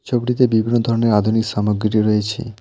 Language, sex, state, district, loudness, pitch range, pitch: Bengali, male, West Bengal, Alipurduar, -17 LUFS, 105-120 Hz, 110 Hz